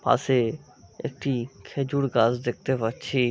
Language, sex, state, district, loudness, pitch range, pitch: Bengali, male, West Bengal, Malda, -26 LUFS, 120-140 Hz, 130 Hz